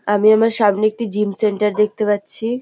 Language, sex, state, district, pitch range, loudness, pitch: Bengali, female, West Bengal, North 24 Parganas, 210-225 Hz, -17 LUFS, 210 Hz